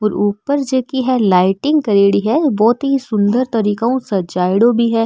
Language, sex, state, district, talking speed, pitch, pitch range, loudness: Marwari, female, Rajasthan, Nagaur, 180 wpm, 225 Hz, 205-260 Hz, -15 LUFS